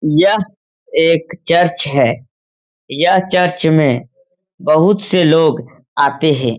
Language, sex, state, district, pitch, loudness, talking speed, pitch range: Hindi, male, Uttar Pradesh, Etah, 165 Hz, -14 LUFS, 120 wpm, 140-185 Hz